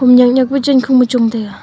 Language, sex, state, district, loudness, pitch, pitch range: Wancho, female, Arunachal Pradesh, Longding, -12 LUFS, 250 Hz, 245-260 Hz